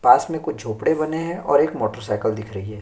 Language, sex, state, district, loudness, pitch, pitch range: Hindi, male, Uttar Pradesh, Jyotiba Phule Nagar, -22 LUFS, 110 Hz, 105-155 Hz